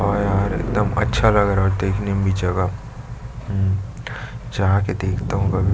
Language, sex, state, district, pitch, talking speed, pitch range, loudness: Hindi, male, Chhattisgarh, Jashpur, 100 Hz, 180 wpm, 95-110 Hz, -20 LUFS